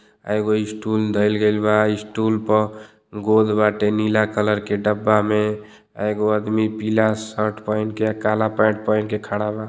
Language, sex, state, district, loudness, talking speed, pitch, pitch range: Bhojpuri, male, Uttar Pradesh, Deoria, -20 LUFS, 175 wpm, 105 Hz, 105-110 Hz